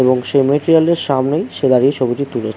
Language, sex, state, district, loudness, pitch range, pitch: Bengali, male, West Bengal, Jhargram, -15 LUFS, 125-145 Hz, 135 Hz